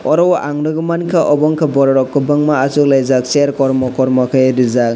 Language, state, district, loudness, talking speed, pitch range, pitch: Kokborok, Tripura, West Tripura, -13 LUFS, 195 wpm, 130-150 Hz, 140 Hz